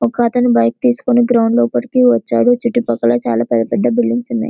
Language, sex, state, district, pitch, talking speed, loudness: Telugu, female, Telangana, Karimnagar, 175 Hz, 200 wpm, -14 LUFS